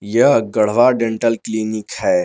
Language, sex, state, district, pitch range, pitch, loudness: Hindi, male, Jharkhand, Garhwa, 110-120 Hz, 115 Hz, -16 LUFS